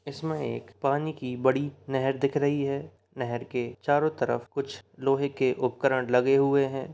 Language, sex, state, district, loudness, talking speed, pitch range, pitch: Hindi, male, Bihar, Begusarai, -27 LUFS, 175 wpm, 130-140 Hz, 135 Hz